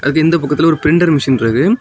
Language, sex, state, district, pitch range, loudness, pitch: Tamil, male, Tamil Nadu, Kanyakumari, 140-165 Hz, -12 LUFS, 155 Hz